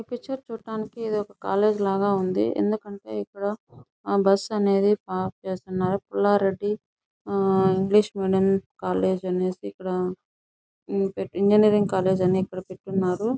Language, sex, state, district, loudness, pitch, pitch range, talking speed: Telugu, female, Andhra Pradesh, Chittoor, -24 LUFS, 195 Hz, 185-205 Hz, 115 wpm